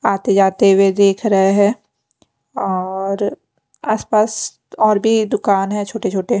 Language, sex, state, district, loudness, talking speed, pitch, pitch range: Hindi, female, Punjab, Pathankot, -16 LUFS, 140 wpm, 200 Hz, 195-215 Hz